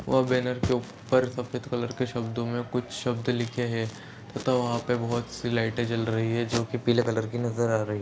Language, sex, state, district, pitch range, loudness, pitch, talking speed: Hindi, male, Uttar Pradesh, Deoria, 115-125 Hz, -28 LUFS, 120 Hz, 225 wpm